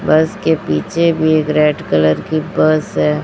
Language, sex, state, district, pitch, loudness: Hindi, female, Chhattisgarh, Raipur, 155 Hz, -15 LUFS